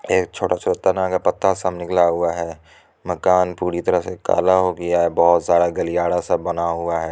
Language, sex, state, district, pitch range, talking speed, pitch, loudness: Hindi, male, Bihar, Supaul, 85-90 Hz, 210 wpm, 85 Hz, -19 LUFS